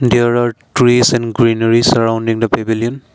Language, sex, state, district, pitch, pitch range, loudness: English, male, Assam, Kamrup Metropolitan, 115 Hz, 115-120 Hz, -13 LUFS